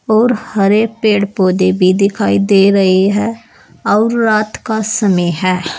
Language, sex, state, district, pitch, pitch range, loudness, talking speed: Hindi, female, Uttar Pradesh, Saharanpur, 205 Hz, 190-220 Hz, -13 LUFS, 145 wpm